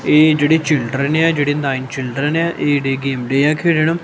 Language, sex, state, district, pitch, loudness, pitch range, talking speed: Punjabi, male, Punjab, Kapurthala, 145 Hz, -16 LUFS, 135-155 Hz, 210 wpm